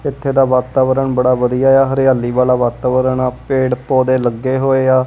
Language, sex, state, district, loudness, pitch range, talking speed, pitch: Punjabi, female, Punjab, Kapurthala, -14 LUFS, 125-135 Hz, 175 wpm, 130 Hz